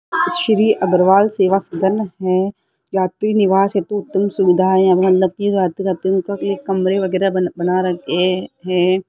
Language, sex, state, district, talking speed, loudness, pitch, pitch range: Hindi, female, Rajasthan, Jaipur, 125 wpm, -16 LUFS, 190 Hz, 185-195 Hz